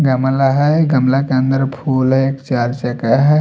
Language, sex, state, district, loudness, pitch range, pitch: Hindi, male, Delhi, New Delhi, -15 LUFS, 130-135 Hz, 135 Hz